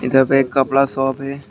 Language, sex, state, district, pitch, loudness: Hindi, male, West Bengal, Alipurduar, 135 Hz, -17 LUFS